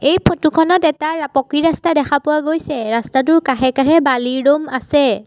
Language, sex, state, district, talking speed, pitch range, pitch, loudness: Assamese, female, Assam, Sonitpur, 170 wpm, 265-315 Hz, 295 Hz, -15 LUFS